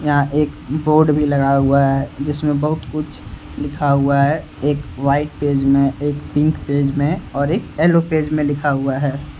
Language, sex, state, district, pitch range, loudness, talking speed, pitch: Hindi, male, Jharkhand, Deoghar, 140-150 Hz, -17 LUFS, 185 wpm, 145 Hz